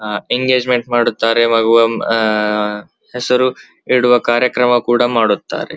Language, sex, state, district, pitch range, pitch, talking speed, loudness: Kannada, male, Karnataka, Belgaum, 115-125 Hz, 120 Hz, 75 wpm, -14 LUFS